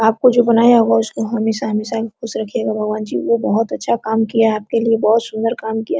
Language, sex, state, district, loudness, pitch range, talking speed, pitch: Hindi, female, Jharkhand, Sahebganj, -16 LUFS, 220-230 Hz, 240 wpm, 225 Hz